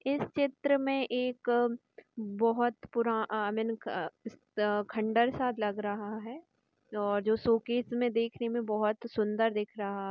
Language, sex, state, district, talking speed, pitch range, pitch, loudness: Hindi, female, Chhattisgarh, Sukma, 155 wpm, 215-245 Hz, 230 Hz, -32 LUFS